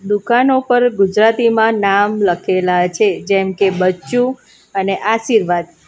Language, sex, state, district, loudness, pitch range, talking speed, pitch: Gujarati, female, Gujarat, Valsad, -14 LUFS, 190-240 Hz, 110 wpm, 205 Hz